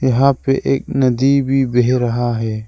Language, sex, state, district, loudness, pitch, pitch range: Hindi, male, Arunachal Pradesh, Lower Dibang Valley, -16 LUFS, 130 Hz, 120-135 Hz